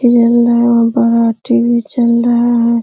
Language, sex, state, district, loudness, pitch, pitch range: Hindi, female, Uttar Pradesh, Hamirpur, -11 LUFS, 235 Hz, 235-240 Hz